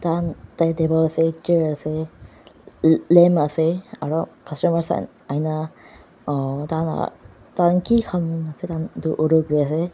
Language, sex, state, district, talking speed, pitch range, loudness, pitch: Nagamese, female, Nagaland, Dimapur, 90 wpm, 155-170 Hz, -21 LUFS, 160 Hz